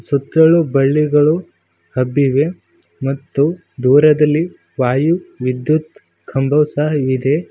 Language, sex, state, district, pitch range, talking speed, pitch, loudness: Kannada, male, Karnataka, Koppal, 135-155 Hz, 80 wpm, 145 Hz, -15 LUFS